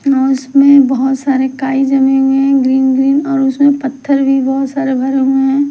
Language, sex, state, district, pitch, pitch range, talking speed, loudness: Hindi, female, Bihar, Kaimur, 270 Hz, 265-275 Hz, 200 wpm, -12 LUFS